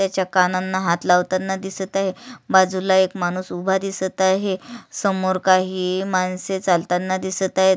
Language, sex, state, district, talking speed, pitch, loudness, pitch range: Marathi, female, Maharashtra, Sindhudurg, 145 wpm, 190 Hz, -20 LUFS, 185-190 Hz